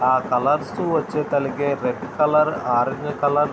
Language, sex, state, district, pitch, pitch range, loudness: Telugu, male, Andhra Pradesh, Srikakulam, 145 Hz, 130-150 Hz, -21 LUFS